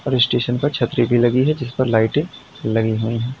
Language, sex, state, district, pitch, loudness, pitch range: Hindi, male, Uttar Pradesh, Lalitpur, 120 Hz, -19 LUFS, 115-130 Hz